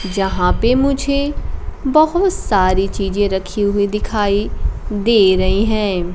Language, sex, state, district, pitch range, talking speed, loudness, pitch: Hindi, female, Bihar, Kaimur, 195-240 Hz, 115 wpm, -16 LUFS, 205 Hz